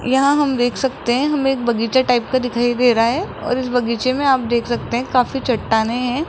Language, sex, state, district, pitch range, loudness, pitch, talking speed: Hindi, female, Rajasthan, Jaipur, 240-265 Hz, -18 LUFS, 245 Hz, 240 wpm